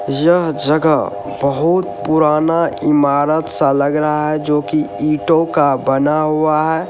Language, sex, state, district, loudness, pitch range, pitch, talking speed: Hindi, male, Uttar Pradesh, Lalitpur, -15 LUFS, 145-160 Hz, 150 Hz, 140 wpm